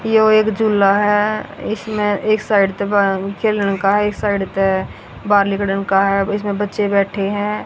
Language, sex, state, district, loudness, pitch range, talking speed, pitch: Hindi, female, Haryana, Rohtak, -17 LUFS, 195-210 Hz, 95 wpm, 205 Hz